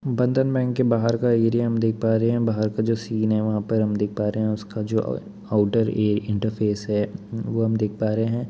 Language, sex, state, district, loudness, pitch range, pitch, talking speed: Hindi, male, Bihar, Muzaffarpur, -23 LUFS, 105-115 Hz, 110 Hz, 255 wpm